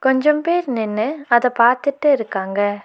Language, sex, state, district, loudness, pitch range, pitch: Tamil, female, Tamil Nadu, Nilgiris, -18 LUFS, 215-290 Hz, 250 Hz